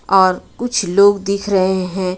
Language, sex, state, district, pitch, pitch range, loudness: Hindi, female, Jharkhand, Ranchi, 195 Hz, 185-200 Hz, -15 LUFS